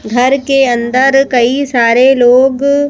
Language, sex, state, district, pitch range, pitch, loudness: Hindi, female, Madhya Pradesh, Bhopal, 245-270 Hz, 260 Hz, -10 LUFS